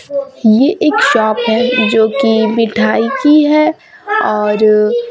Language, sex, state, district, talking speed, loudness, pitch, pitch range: Hindi, female, Chhattisgarh, Raipur, 115 wpm, -11 LUFS, 235 Hz, 220-300 Hz